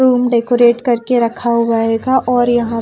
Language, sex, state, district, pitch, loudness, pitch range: Hindi, female, Haryana, Rohtak, 240 Hz, -14 LUFS, 230-245 Hz